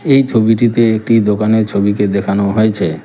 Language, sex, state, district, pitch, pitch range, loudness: Bengali, male, West Bengal, Cooch Behar, 110 Hz, 100-115 Hz, -13 LUFS